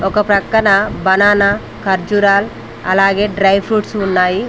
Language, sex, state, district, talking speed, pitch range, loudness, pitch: Telugu, female, Telangana, Mahabubabad, 105 wpm, 190-205 Hz, -13 LUFS, 200 Hz